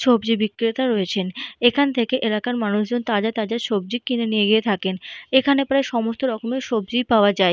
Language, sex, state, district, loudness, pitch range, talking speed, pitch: Bengali, female, Jharkhand, Jamtara, -21 LUFS, 210-245 Hz, 165 wpm, 230 Hz